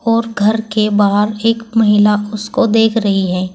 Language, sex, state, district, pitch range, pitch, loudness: Hindi, female, Uttar Pradesh, Saharanpur, 205-225 Hz, 215 Hz, -14 LUFS